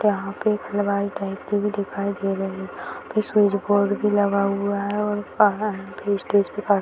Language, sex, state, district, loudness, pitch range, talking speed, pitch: Hindi, female, Bihar, Sitamarhi, -23 LUFS, 200-210 Hz, 175 wpm, 200 Hz